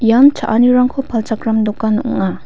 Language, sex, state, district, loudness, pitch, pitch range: Garo, female, Meghalaya, West Garo Hills, -14 LUFS, 225 Hz, 220-250 Hz